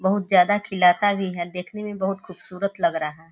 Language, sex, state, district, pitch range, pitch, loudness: Hindi, female, Bihar, Sitamarhi, 180-205 Hz, 190 Hz, -22 LUFS